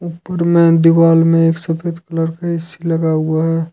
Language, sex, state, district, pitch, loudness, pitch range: Hindi, male, Jharkhand, Ranchi, 165 Hz, -14 LUFS, 165-170 Hz